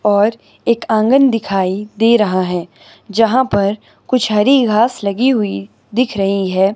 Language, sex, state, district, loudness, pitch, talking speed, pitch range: Hindi, male, Himachal Pradesh, Shimla, -15 LUFS, 210 Hz, 150 wpm, 195-235 Hz